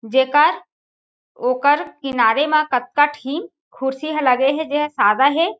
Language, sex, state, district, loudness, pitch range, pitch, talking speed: Chhattisgarhi, female, Chhattisgarh, Jashpur, -18 LUFS, 265-305 Hz, 285 Hz, 140 wpm